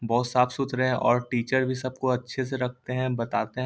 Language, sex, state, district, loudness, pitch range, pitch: Hindi, male, Bihar, Lakhisarai, -26 LUFS, 125-130 Hz, 125 Hz